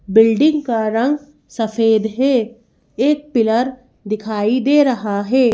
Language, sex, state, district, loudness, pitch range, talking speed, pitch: Hindi, female, Madhya Pradesh, Bhopal, -17 LUFS, 220-265 Hz, 110 wpm, 235 Hz